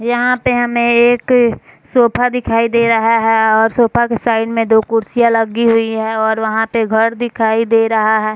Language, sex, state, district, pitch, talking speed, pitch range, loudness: Hindi, female, Bihar, Sitamarhi, 230 Hz, 200 wpm, 225-235 Hz, -13 LUFS